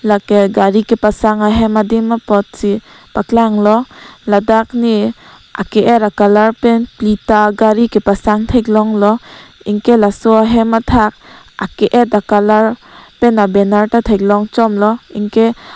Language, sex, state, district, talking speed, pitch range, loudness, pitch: Karbi, female, Assam, Karbi Anglong, 155 wpm, 210-230 Hz, -12 LUFS, 215 Hz